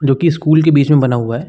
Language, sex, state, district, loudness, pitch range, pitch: Hindi, male, Uttar Pradesh, Muzaffarnagar, -12 LUFS, 135-160 Hz, 145 Hz